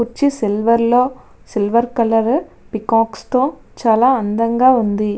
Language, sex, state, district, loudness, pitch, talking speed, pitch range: Telugu, female, Andhra Pradesh, Visakhapatnam, -16 LUFS, 235 Hz, 115 wpm, 225-255 Hz